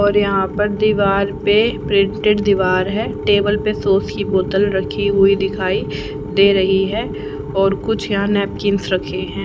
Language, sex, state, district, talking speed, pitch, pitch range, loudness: Hindi, female, Haryana, Jhajjar, 160 wpm, 200 Hz, 190-205 Hz, -17 LUFS